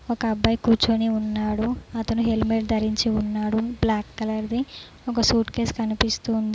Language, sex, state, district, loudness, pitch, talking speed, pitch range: Telugu, female, Telangana, Mahabubabad, -23 LUFS, 225 Hz, 140 wpm, 215-230 Hz